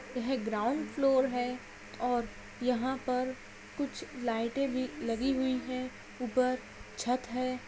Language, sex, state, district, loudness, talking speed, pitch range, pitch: Hindi, female, Bihar, Kishanganj, -33 LUFS, 125 wpm, 245-260 Hz, 255 Hz